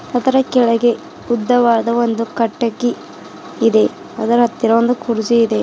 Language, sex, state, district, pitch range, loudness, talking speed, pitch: Kannada, female, Karnataka, Bidar, 230-245 Hz, -16 LUFS, 130 wpm, 235 Hz